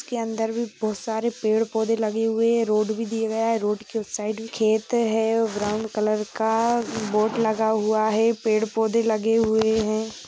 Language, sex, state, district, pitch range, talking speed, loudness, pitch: Hindi, female, Bihar, Jahanabad, 215-225 Hz, 205 wpm, -23 LUFS, 220 Hz